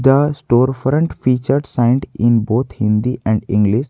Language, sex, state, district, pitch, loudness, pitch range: English, male, Jharkhand, Garhwa, 125 Hz, -16 LUFS, 110-135 Hz